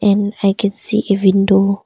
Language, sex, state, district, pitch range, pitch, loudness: English, female, Arunachal Pradesh, Longding, 195-205 Hz, 200 Hz, -15 LUFS